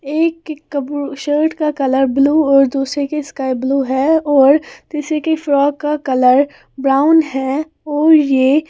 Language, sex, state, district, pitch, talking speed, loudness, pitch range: Hindi, female, Haryana, Jhajjar, 285 Hz, 160 wpm, -15 LUFS, 270-305 Hz